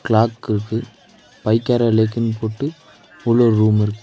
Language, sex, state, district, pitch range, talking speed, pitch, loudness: Tamil, male, Tamil Nadu, Nilgiris, 110-120 Hz, 135 wpm, 115 Hz, -18 LUFS